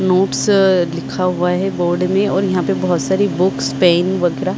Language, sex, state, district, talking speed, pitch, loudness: Hindi, female, Chhattisgarh, Bilaspur, 185 wpm, 165 Hz, -16 LUFS